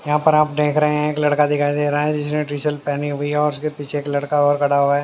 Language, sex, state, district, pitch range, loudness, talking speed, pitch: Hindi, male, Haryana, Jhajjar, 145-150 Hz, -19 LUFS, 300 wpm, 150 Hz